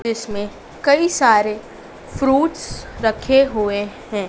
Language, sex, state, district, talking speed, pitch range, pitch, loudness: Hindi, female, Madhya Pradesh, Dhar, 100 wpm, 210-270 Hz, 225 Hz, -18 LUFS